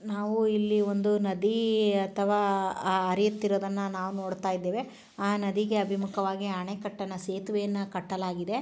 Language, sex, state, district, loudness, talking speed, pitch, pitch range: Kannada, female, Karnataka, Chamarajanagar, -29 LUFS, 110 wpm, 200 Hz, 190-210 Hz